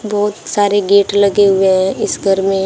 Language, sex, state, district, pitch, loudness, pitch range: Hindi, female, Uttar Pradesh, Shamli, 200 Hz, -13 LUFS, 195-205 Hz